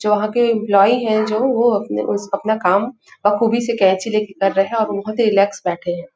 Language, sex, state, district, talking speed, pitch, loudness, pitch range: Hindi, female, Chhattisgarh, Raigarh, 245 wpm, 210 Hz, -17 LUFS, 195-225 Hz